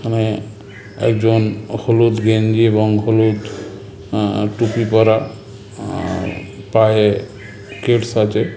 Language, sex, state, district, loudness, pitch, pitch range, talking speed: Bengali, male, West Bengal, North 24 Parganas, -16 LUFS, 110 Hz, 100-110 Hz, 90 wpm